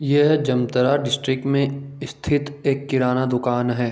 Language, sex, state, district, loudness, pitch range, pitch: Hindi, male, Jharkhand, Jamtara, -21 LUFS, 125-145 Hz, 140 Hz